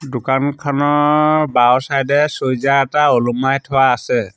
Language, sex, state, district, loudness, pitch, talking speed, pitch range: Assamese, male, Assam, Sonitpur, -15 LUFS, 135 Hz, 110 wpm, 130-145 Hz